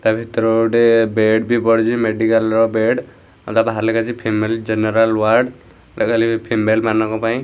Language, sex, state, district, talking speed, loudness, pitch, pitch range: Odia, male, Odisha, Khordha, 185 wpm, -16 LUFS, 115 Hz, 110-115 Hz